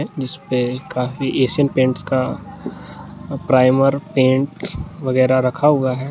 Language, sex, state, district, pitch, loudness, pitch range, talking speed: Hindi, male, Jharkhand, Garhwa, 130 Hz, -18 LUFS, 130-140 Hz, 110 wpm